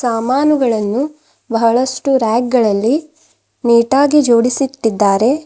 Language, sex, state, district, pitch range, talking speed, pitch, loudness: Kannada, female, Karnataka, Bidar, 230-275 Hz, 55 wpm, 250 Hz, -14 LUFS